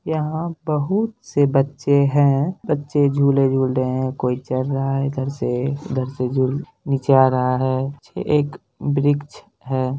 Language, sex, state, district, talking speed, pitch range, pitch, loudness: Hindi, male, Bihar, Lakhisarai, 150 wpm, 130-145 Hz, 140 Hz, -20 LUFS